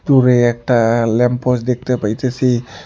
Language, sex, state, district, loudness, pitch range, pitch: Bengali, male, West Bengal, Alipurduar, -15 LUFS, 115-125 Hz, 125 Hz